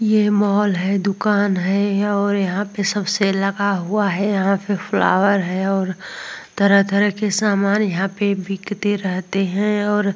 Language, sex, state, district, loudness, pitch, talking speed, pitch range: Hindi, female, Uttar Pradesh, Muzaffarnagar, -19 LUFS, 200 Hz, 165 wpm, 195-205 Hz